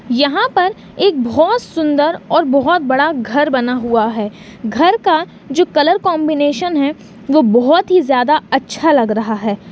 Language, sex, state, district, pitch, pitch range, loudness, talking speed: Hindi, female, Uttar Pradesh, Hamirpur, 290 Hz, 240-330 Hz, -14 LUFS, 160 wpm